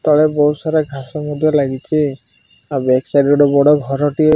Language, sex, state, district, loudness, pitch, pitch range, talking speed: Odia, male, Odisha, Malkangiri, -15 LUFS, 145 Hz, 140-150 Hz, 205 wpm